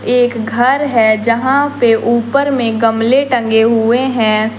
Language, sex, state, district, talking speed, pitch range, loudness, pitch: Hindi, female, Jharkhand, Deoghar, 145 wpm, 225-255 Hz, -12 LUFS, 235 Hz